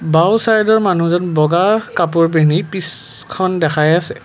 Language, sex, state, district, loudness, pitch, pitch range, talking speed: Assamese, male, Assam, Kamrup Metropolitan, -14 LUFS, 170 Hz, 160-190 Hz, 125 wpm